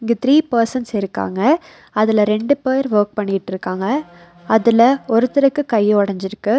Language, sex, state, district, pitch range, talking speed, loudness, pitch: Tamil, female, Tamil Nadu, Nilgiris, 205-260 Hz, 120 wpm, -17 LUFS, 225 Hz